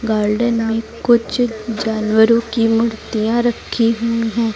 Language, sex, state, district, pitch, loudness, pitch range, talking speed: Hindi, female, Uttar Pradesh, Lucknow, 230 Hz, -17 LUFS, 220-230 Hz, 120 wpm